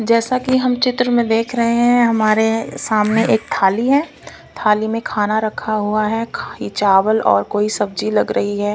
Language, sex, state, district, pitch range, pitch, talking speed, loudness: Hindi, female, Punjab, Kapurthala, 210-235 Hz, 220 Hz, 185 wpm, -17 LUFS